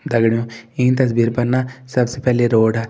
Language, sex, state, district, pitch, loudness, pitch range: Hindi, male, Uttarakhand, Tehri Garhwal, 120 Hz, -17 LUFS, 115-125 Hz